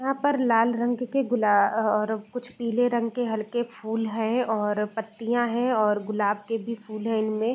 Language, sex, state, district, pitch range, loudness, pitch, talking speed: Hindi, female, Bihar, Gopalganj, 215-240 Hz, -25 LUFS, 225 Hz, 200 wpm